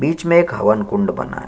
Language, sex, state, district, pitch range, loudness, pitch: Hindi, male, Chhattisgarh, Sukma, 110-170 Hz, -16 LUFS, 165 Hz